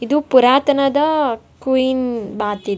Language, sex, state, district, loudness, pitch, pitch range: Kannada, female, Karnataka, Bellary, -16 LUFS, 260 Hz, 225-280 Hz